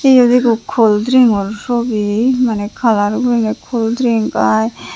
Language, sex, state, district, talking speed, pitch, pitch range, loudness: Chakma, female, Tripura, Unakoti, 145 wpm, 225 Hz, 205-245 Hz, -14 LUFS